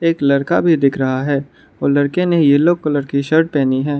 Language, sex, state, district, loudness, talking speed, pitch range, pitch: Hindi, male, Arunachal Pradesh, Lower Dibang Valley, -15 LUFS, 225 wpm, 140-165 Hz, 145 Hz